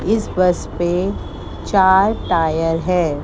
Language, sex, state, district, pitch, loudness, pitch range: Hindi, female, Gujarat, Gandhinagar, 180 Hz, -17 LUFS, 165-190 Hz